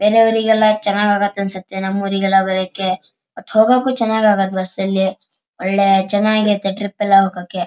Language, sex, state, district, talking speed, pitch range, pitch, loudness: Kannada, male, Karnataka, Shimoga, 150 wpm, 190-210 Hz, 200 Hz, -16 LUFS